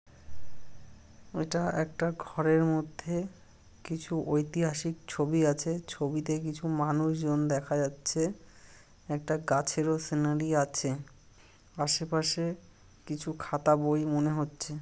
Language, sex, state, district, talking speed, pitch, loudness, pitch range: Bengali, male, West Bengal, North 24 Parganas, 95 wpm, 150 Hz, -31 LUFS, 145-160 Hz